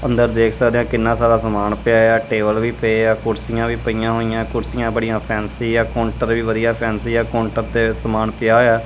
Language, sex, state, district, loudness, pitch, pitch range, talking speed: Punjabi, male, Punjab, Kapurthala, -18 LUFS, 115 Hz, 110-115 Hz, 210 wpm